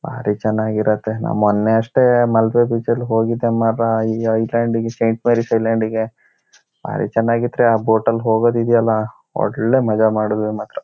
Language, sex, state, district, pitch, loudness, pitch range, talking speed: Kannada, male, Karnataka, Shimoga, 115 Hz, -17 LUFS, 110-115 Hz, 170 wpm